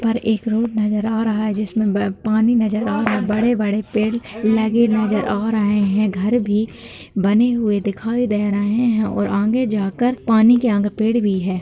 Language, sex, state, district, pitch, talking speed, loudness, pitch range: Hindi, female, Bihar, Darbhanga, 215 Hz, 200 wpm, -18 LUFS, 205-225 Hz